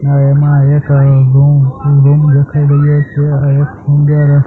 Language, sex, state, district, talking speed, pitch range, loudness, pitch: Gujarati, male, Gujarat, Gandhinagar, 105 wpm, 140-145 Hz, -9 LUFS, 145 Hz